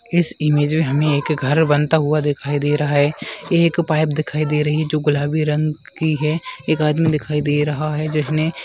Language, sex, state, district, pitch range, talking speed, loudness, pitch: Hindi, female, West Bengal, Dakshin Dinajpur, 150-155 Hz, 210 wpm, -18 LUFS, 150 Hz